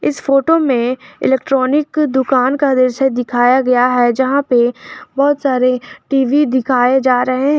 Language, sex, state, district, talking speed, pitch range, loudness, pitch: Hindi, female, Jharkhand, Garhwa, 150 wpm, 250-280 Hz, -14 LUFS, 260 Hz